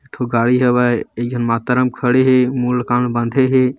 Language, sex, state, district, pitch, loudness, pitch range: Hindi, male, Chhattisgarh, Bilaspur, 125 Hz, -16 LUFS, 120-125 Hz